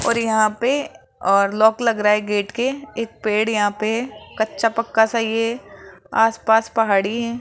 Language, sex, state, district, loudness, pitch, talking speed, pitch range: Hindi, male, Rajasthan, Jaipur, -19 LUFS, 225 Hz, 180 wpm, 215-235 Hz